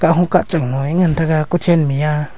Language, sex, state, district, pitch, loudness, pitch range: Wancho, male, Arunachal Pradesh, Longding, 160 Hz, -16 LUFS, 150-175 Hz